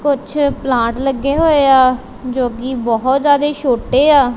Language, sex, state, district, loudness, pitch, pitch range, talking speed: Punjabi, female, Punjab, Kapurthala, -14 LUFS, 265 Hz, 250-285 Hz, 150 wpm